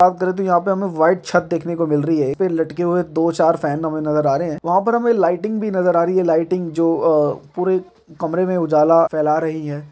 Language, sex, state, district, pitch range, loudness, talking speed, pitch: Hindi, male, Bihar, Darbhanga, 160-180 Hz, -18 LUFS, 255 wpm, 170 Hz